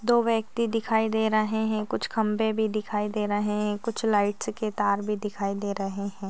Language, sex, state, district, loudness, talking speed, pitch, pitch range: Hindi, female, Maharashtra, Dhule, -27 LUFS, 210 wpm, 215 Hz, 205-220 Hz